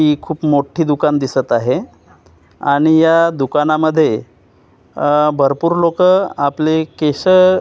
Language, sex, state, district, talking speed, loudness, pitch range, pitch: Marathi, male, Maharashtra, Gondia, 110 wpm, -14 LUFS, 140-165 Hz, 150 Hz